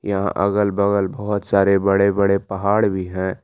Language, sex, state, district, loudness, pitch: Hindi, male, Jharkhand, Palamu, -19 LUFS, 100 Hz